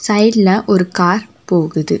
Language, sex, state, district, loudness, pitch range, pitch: Tamil, female, Tamil Nadu, Nilgiris, -14 LUFS, 175-210 Hz, 190 Hz